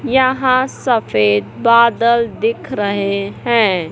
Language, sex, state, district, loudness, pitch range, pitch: Hindi, male, Madhya Pradesh, Katni, -15 LUFS, 200-255 Hz, 235 Hz